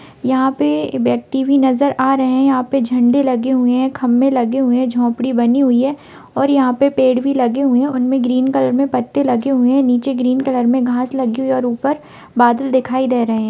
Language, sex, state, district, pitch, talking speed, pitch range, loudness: Hindi, female, Bihar, Purnia, 255 Hz, 235 wpm, 245-270 Hz, -15 LUFS